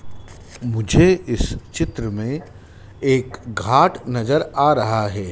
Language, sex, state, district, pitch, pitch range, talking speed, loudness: Hindi, male, Madhya Pradesh, Dhar, 115 Hz, 100-135 Hz, 115 wpm, -19 LUFS